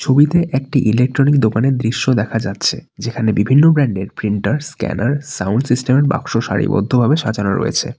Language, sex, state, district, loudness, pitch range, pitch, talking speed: Bengali, male, West Bengal, Alipurduar, -16 LUFS, 110-145 Hz, 125 Hz, 150 wpm